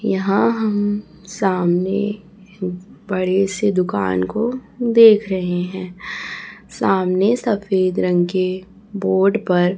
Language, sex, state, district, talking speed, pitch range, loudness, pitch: Hindi, female, Chhattisgarh, Raipur, 105 wpm, 185-205 Hz, -18 LUFS, 190 Hz